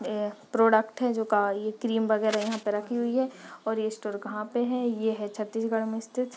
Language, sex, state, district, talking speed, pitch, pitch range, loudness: Hindi, female, Chhattisgarh, Kabirdham, 225 wpm, 220 Hz, 210-235 Hz, -28 LUFS